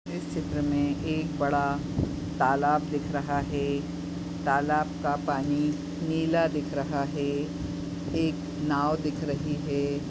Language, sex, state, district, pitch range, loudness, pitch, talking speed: Hindi, female, Goa, North and South Goa, 145-150 Hz, -28 LUFS, 150 Hz, 120 wpm